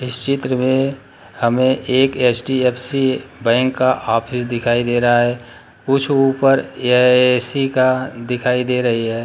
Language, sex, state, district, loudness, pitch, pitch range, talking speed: Hindi, male, Bihar, Jahanabad, -17 LUFS, 125 Hz, 120-130 Hz, 145 wpm